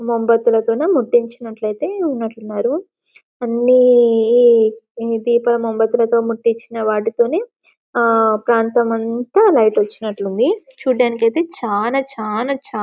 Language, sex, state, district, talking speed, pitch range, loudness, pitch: Telugu, female, Telangana, Karimnagar, 100 wpm, 225-245 Hz, -16 LUFS, 235 Hz